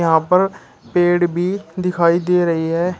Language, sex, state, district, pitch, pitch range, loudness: Hindi, male, Uttar Pradesh, Shamli, 175 Hz, 170-180 Hz, -17 LUFS